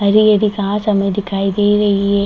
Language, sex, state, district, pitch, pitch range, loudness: Hindi, female, Bihar, Darbhanga, 205 Hz, 200-210 Hz, -15 LUFS